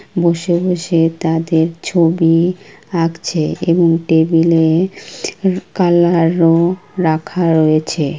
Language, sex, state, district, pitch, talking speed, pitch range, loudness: Bengali, female, West Bengal, Kolkata, 165 Hz, 80 wpm, 165-175 Hz, -14 LUFS